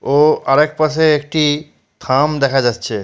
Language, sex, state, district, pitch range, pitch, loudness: Bengali, male, West Bengal, Purulia, 135-155 Hz, 150 Hz, -15 LUFS